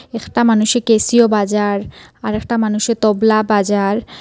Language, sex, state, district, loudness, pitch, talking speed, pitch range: Bengali, female, Assam, Hailakandi, -15 LUFS, 215 Hz, 130 wpm, 210-230 Hz